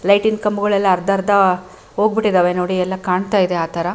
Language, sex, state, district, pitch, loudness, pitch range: Kannada, female, Karnataka, Bellary, 190 Hz, -17 LUFS, 180-205 Hz